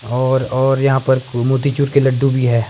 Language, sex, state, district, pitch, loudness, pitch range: Hindi, male, Himachal Pradesh, Shimla, 130 Hz, -16 LUFS, 125-135 Hz